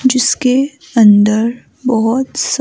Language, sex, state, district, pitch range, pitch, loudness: Hindi, female, Himachal Pradesh, Shimla, 225-265 Hz, 250 Hz, -13 LUFS